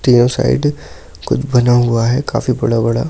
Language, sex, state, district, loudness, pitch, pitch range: Hindi, male, Delhi, New Delhi, -14 LUFS, 125 Hz, 120-135 Hz